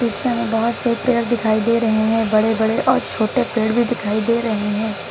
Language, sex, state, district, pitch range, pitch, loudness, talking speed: Hindi, female, Uttar Pradesh, Lucknow, 220-235 Hz, 225 Hz, -18 LUFS, 225 wpm